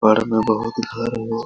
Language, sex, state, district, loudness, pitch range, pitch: Hindi, male, Jharkhand, Sahebganj, -20 LUFS, 110-115 Hz, 115 Hz